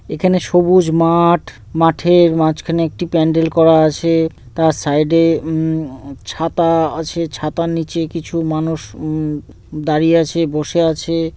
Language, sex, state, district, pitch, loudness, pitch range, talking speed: Bengali, male, West Bengal, North 24 Parganas, 160 Hz, -15 LUFS, 155-165 Hz, 125 wpm